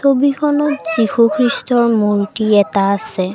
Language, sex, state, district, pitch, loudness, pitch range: Assamese, female, Assam, Kamrup Metropolitan, 225 Hz, -15 LUFS, 205-280 Hz